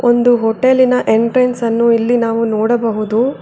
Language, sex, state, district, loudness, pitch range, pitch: Kannada, female, Karnataka, Bangalore, -13 LUFS, 225-245 Hz, 235 Hz